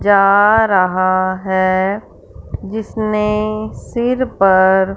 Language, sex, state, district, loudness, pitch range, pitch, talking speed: Hindi, female, Punjab, Fazilka, -15 LUFS, 190-215 Hz, 200 Hz, 70 wpm